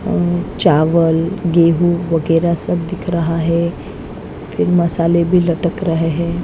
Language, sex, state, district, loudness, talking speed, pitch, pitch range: Hindi, female, Maharashtra, Mumbai Suburban, -15 LUFS, 130 wpm, 170 Hz, 165-175 Hz